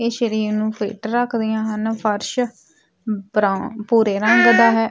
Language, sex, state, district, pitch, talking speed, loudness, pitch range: Punjabi, female, Punjab, Fazilka, 220 Hz, 145 wpm, -19 LUFS, 215-230 Hz